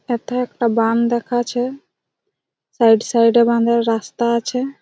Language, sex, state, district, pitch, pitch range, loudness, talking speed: Bengali, female, West Bengal, Jhargram, 235 Hz, 230-245 Hz, -17 LUFS, 150 wpm